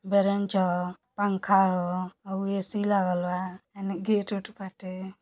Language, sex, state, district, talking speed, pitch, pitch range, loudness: Bhojpuri, female, Uttar Pradesh, Gorakhpur, 140 wpm, 195 Hz, 185-200 Hz, -28 LUFS